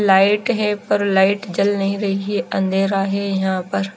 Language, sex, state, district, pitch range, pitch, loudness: Hindi, female, Chandigarh, Chandigarh, 190-205 Hz, 195 Hz, -18 LUFS